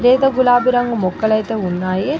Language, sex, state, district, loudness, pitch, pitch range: Telugu, female, Andhra Pradesh, Krishna, -16 LUFS, 235 Hz, 190-250 Hz